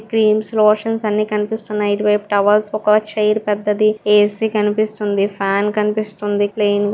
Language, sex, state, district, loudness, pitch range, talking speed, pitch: Telugu, female, Andhra Pradesh, Srikakulam, -17 LUFS, 205-215 Hz, 130 wpm, 210 Hz